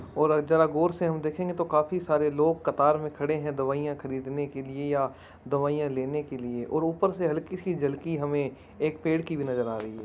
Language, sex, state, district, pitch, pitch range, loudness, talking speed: Hindi, male, Rajasthan, Churu, 150 Hz, 135-160 Hz, -28 LUFS, 225 wpm